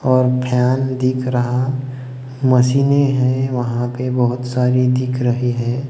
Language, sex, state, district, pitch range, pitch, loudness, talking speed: Hindi, male, Maharashtra, Gondia, 125-130 Hz, 125 Hz, -17 LUFS, 130 wpm